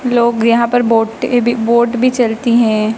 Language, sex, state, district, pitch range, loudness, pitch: Hindi, male, Madhya Pradesh, Dhar, 225-240 Hz, -13 LUFS, 235 Hz